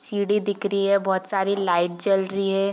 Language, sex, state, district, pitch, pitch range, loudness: Hindi, female, Bihar, Gopalganj, 195 Hz, 190-200 Hz, -23 LUFS